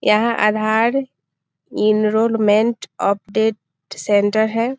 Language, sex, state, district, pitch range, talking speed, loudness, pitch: Hindi, female, Bihar, Muzaffarpur, 210-230 Hz, 75 wpm, -17 LUFS, 220 Hz